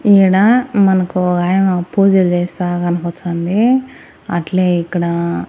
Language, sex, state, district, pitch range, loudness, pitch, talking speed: Telugu, female, Andhra Pradesh, Annamaya, 175-195 Hz, -14 LUFS, 180 Hz, 85 wpm